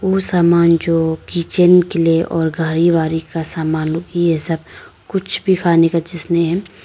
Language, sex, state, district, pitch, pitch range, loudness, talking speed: Hindi, female, Arunachal Pradesh, Papum Pare, 170 Hz, 165-175 Hz, -15 LUFS, 155 wpm